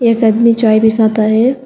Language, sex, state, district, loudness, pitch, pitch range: Hindi, female, Telangana, Hyderabad, -11 LUFS, 225 Hz, 220-230 Hz